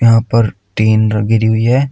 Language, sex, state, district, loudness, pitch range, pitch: Hindi, male, Uttar Pradesh, Shamli, -13 LUFS, 110-115 Hz, 110 Hz